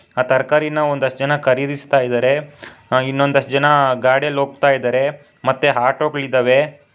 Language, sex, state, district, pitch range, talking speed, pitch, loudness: Kannada, male, Karnataka, Bangalore, 130-145 Hz, 95 wpm, 140 Hz, -17 LUFS